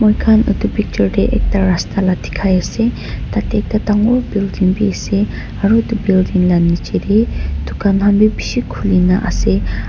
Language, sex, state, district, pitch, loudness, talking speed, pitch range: Nagamese, female, Nagaland, Dimapur, 200 Hz, -15 LUFS, 160 wpm, 185-215 Hz